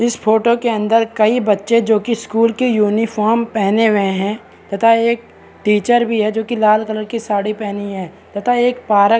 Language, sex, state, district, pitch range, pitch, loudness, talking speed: Hindi, male, Maharashtra, Chandrapur, 210-230 Hz, 220 Hz, -16 LUFS, 200 wpm